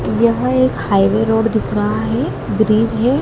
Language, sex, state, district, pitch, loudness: Hindi, female, Madhya Pradesh, Dhar, 210 Hz, -16 LUFS